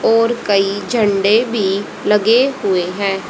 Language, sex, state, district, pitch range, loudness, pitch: Hindi, female, Haryana, Rohtak, 195-230 Hz, -15 LUFS, 205 Hz